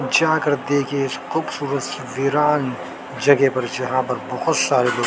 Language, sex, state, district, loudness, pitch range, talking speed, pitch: Hindi, male, Maharashtra, Mumbai Suburban, -20 LUFS, 125-145 Hz, 155 wpm, 135 Hz